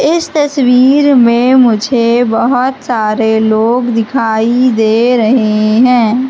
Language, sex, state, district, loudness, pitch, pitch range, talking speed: Hindi, female, Madhya Pradesh, Katni, -10 LUFS, 240 Hz, 225-255 Hz, 105 wpm